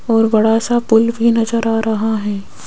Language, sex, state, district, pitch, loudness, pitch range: Hindi, female, Rajasthan, Jaipur, 225 Hz, -15 LUFS, 220-230 Hz